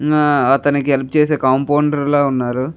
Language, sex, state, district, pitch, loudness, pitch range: Telugu, male, Andhra Pradesh, Chittoor, 145 Hz, -15 LUFS, 135-150 Hz